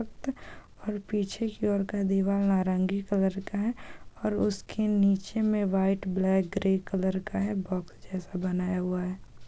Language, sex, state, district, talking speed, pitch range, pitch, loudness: Hindi, female, Jharkhand, Sahebganj, 160 wpm, 190-205 Hz, 195 Hz, -29 LUFS